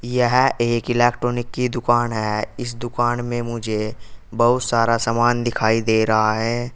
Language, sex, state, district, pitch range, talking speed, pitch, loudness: Hindi, male, Uttar Pradesh, Saharanpur, 115-120 Hz, 150 wpm, 120 Hz, -20 LUFS